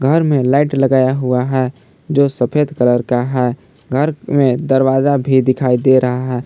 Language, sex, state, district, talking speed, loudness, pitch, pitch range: Hindi, male, Jharkhand, Palamu, 165 wpm, -15 LUFS, 130 Hz, 125-140 Hz